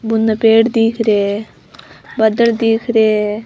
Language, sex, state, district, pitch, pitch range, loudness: Rajasthani, female, Rajasthan, Nagaur, 225 Hz, 215-225 Hz, -14 LUFS